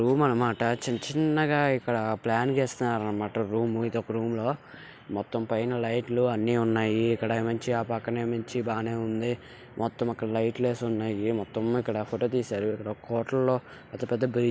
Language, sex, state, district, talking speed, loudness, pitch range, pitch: Telugu, male, Andhra Pradesh, Guntur, 165 wpm, -28 LUFS, 115-120 Hz, 115 Hz